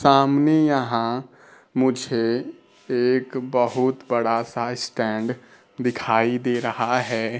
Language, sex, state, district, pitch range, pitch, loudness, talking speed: Hindi, male, Bihar, Kaimur, 115-130 Hz, 125 Hz, -22 LUFS, 95 wpm